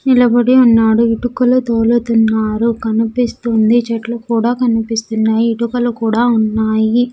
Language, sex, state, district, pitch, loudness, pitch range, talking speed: Telugu, female, Andhra Pradesh, Sri Satya Sai, 230 Hz, -14 LUFS, 225-240 Hz, 90 wpm